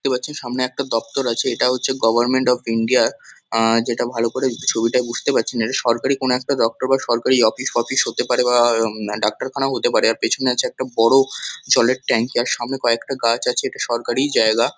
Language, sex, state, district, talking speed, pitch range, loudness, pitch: Bengali, male, West Bengal, Kolkata, 205 wpm, 115-130 Hz, -19 LUFS, 120 Hz